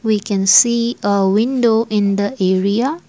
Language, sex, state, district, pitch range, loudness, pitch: English, female, Assam, Kamrup Metropolitan, 200-235 Hz, -15 LUFS, 210 Hz